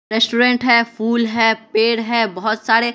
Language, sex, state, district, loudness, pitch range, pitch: Hindi, male, Bihar, West Champaran, -16 LUFS, 220-235 Hz, 230 Hz